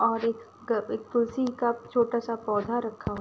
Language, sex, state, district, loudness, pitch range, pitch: Hindi, female, Uttar Pradesh, Ghazipur, -28 LUFS, 225-240 Hz, 230 Hz